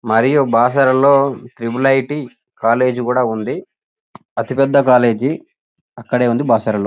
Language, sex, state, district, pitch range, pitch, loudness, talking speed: Telugu, male, Telangana, Nalgonda, 115-135 Hz, 125 Hz, -15 LUFS, 115 wpm